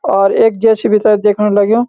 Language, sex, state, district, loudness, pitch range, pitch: Garhwali, male, Uttarakhand, Uttarkashi, -11 LUFS, 205-220 Hz, 210 Hz